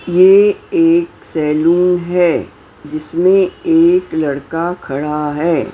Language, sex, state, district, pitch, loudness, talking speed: Hindi, female, Maharashtra, Mumbai Suburban, 180 Hz, -14 LUFS, 95 wpm